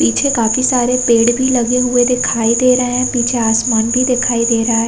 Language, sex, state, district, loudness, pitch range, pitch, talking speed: Hindi, female, Chhattisgarh, Raigarh, -13 LUFS, 230-250 Hz, 245 Hz, 220 wpm